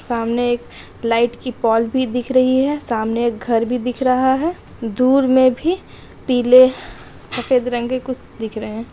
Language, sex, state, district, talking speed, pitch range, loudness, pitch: Hindi, female, Chhattisgarh, Sukma, 170 wpm, 235-255 Hz, -17 LUFS, 250 Hz